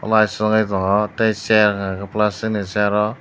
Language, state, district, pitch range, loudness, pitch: Kokborok, Tripura, Dhalai, 100-110 Hz, -18 LUFS, 105 Hz